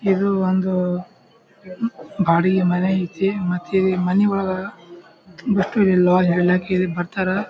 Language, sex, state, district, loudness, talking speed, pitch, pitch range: Kannada, male, Karnataka, Bijapur, -19 LUFS, 95 wpm, 185 Hz, 180-195 Hz